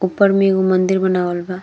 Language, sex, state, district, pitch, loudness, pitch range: Bhojpuri, female, Uttar Pradesh, Gorakhpur, 185 Hz, -16 LUFS, 185-190 Hz